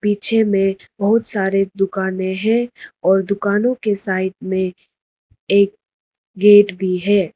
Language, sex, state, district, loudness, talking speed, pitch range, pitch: Hindi, female, Arunachal Pradesh, Lower Dibang Valley, -17 LUFS, 120 wpm, 190-210 Hz, 200 Hz